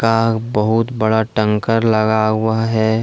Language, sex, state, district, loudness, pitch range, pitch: Hindi, male, Jharkhand, Deoghar, -16 LUFS, 110-115 Hz, 110 Hz